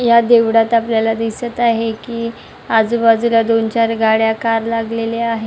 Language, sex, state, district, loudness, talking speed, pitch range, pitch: Marathi, male, Maharashtra, Chandrapur, -15 LUFS, 145 wpm, 225-230 Hz, 230 Hz